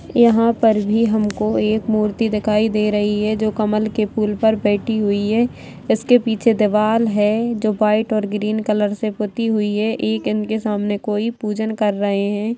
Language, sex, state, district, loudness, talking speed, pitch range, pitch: Hindi, female, Bihar, Jamui, -18 LUFS, 185 wpm, 210-220 Hz, 215 Hz